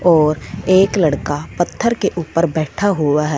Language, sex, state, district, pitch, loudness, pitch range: Hindi, female, Punjab, Fazilka, 170 Hz, -17 LUFS, 150-190 Hz